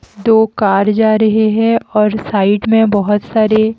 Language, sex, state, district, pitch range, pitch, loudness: Hindi, female, Haryana, Jhajjar, 210-220 Hz, 215 Hz, -12 LUFS